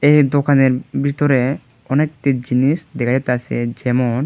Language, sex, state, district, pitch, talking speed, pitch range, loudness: Bengali, male, Tripura, Dhalai, 135 Hz, 110 wpm, 125-145 Hz, -17 LUFS